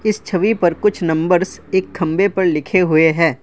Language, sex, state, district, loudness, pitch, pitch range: Hindi, male, Assam, Kamrup Metropolitan, -16 LUFS, 180 Hz, 165-195 Hz